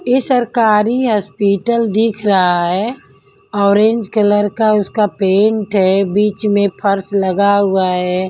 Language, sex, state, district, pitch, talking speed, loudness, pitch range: Hindi, female, Delhi, New Delhi, 205 Hz, 130 wpm, -14 LUFS, 195-220 Hz